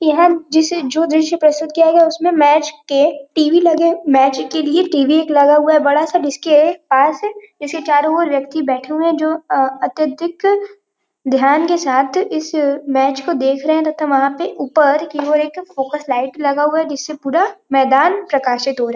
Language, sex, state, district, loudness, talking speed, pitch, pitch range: Hindi, female, Uttar Pradesh, Varanasi, -15 LUFS, 195 wpm, 305 Hz, 280-330 Hz